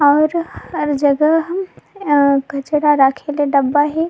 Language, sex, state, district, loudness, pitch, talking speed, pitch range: Sadri, female, Chhattisgarh, Jashpur, -16 LUFS, 295 Hz, 130 wpm, 285-320 Hz